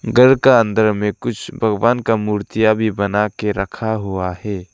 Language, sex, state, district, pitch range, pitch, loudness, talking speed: Hindi, male, Arunachal Pradesh, Lower Dibang Valley, 100-115 Hz, 110 Hz, -17 LUFS, 165 wpm